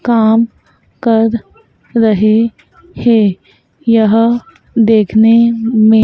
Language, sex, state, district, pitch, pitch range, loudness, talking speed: Hindi, female, Madhya Pradesh, Dhar, 225 Hz, 220-230 Hz, -12 LUFS, 70 wpm